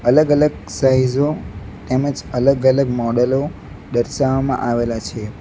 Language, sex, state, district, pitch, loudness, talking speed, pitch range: Gujarati, male, Gujarat, Valsad, 130 Hz, -18 LUFS, 90 wpm, 120-140 Hz